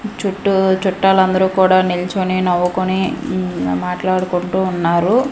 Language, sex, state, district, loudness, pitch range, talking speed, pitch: Telugu, female, Andhra Pradesh, Manyam, -16 LUFS, 180-190 Hz, 80 wpm, 185 Hz